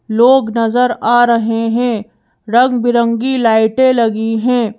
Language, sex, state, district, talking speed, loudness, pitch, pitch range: Hindi, female, Madhya Pradesh, Bhopal, 115 wpm, -13 LUFS, 235 Hz, 225-245 Hz